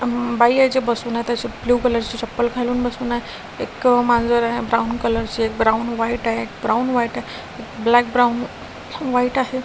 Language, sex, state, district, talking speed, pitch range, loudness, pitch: Marathi, female, Maharashtra, Washim, 175 wpm, 230-245 Hz, -19 LUFS, 240 Hz